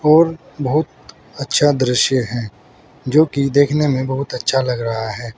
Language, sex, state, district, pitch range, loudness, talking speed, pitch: Hindi, male, Uttar Pradesh, Saharanpur, 125-150 Hz, -17 LUFS, 155 wpm, 135 Hz